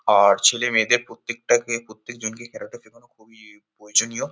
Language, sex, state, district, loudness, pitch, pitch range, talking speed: Bengali, male, West Bengal, Kolkata, -20 LUFS, 115 Hz, 110-120 Hz, 110 wpm